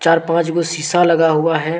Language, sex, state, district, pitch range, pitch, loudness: Hindi, male, Jharkhand, Deoghar, 165-170 Hz, 165 Hz, -15 LUFS